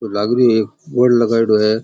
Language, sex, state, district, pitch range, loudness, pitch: Rajasthani, male, Rajasthan, Churu, 110-125 Hz, -15 LUFS, 115 Hz